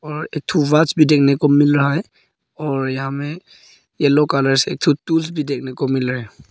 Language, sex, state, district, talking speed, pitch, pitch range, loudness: Hindi, male, Arunachal Pradesh, Papum Pare, 220 wpm, 145 Hz, 135-155 Hz, -17 LUFS